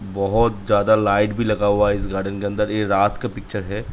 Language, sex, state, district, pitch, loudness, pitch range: Hindi, male, Uttar Pradesh, Budaun, 105 Hz, -20 LUFS, 100-105 Hz